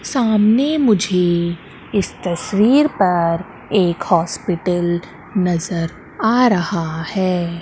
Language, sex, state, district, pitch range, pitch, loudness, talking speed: Hindi, female, Madhya Pradesh, Katni, 170-210 Hz, 180 Hz, -17 LUFS, 85 wpm